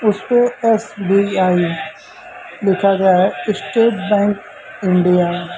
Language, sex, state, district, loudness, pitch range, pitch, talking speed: Hindi, male, Uttar Pradesh, Lucknow, -16 LUFS, 185-230 Hz, 200 Hz, 95 wpm